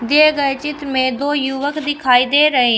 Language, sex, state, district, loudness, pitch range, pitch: Hindi, female, Uttar Pradesh, Shamli, -16 LUFS, 260-295 Hz, 280 Hz